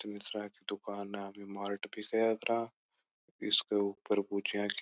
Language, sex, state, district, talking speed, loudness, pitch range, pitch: Marwari, male, Rajasthan, Churu, 135 wpm, -35 LUFS, 100-105 Hz, 100 Hz